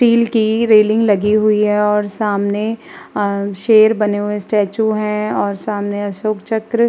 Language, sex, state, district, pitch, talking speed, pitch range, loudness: Hindi, female, Uttar Pradesh, Muzaffarnagar, 210 Hz, 140 wpm, 205-220 Hz, -15 LUFS